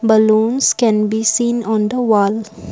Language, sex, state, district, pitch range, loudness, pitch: English, female, Assam, Kamrup Metropolitan, 215-235 Hz, -15 LUFS, 220 Hz